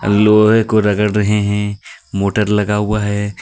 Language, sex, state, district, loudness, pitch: Hindi, male, Jharkhand, Deoghar, -14 LUFS, 105 Hz